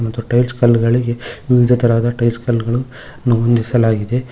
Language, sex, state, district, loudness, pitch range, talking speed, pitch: Kannada, male, Karnataka, Koppal, -15 LUFS, 115-125 Hz, 110 wpm, 120 Hz